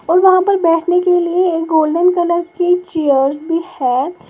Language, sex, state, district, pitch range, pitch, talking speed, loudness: Hindi, female, Uttar Pradesh, Lalitpur, 320-360 Hz, 345 Hz, 165 wpm, -14 LUFS